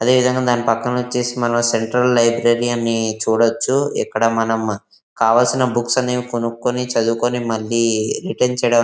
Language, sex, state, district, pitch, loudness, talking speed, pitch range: Telugu, male, Andhra Pradesh, Visakhapatnam, 120 Hz, -18 LUFS, 115 wpm, 115-125 Hz